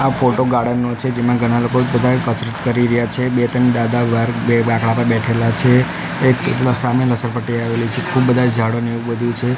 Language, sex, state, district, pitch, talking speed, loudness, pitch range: Gujarati, male, Gujarat, Gandhinagar, 120 Hz, 215 wpm, -16 LUFS, 115-125 Hz